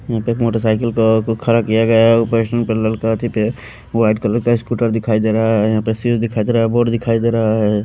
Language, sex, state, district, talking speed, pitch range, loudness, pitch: Hindi, male, Haryana, Rohtak, 260 wpm, 110-115 Hz, -16 LUFS, 115 Hz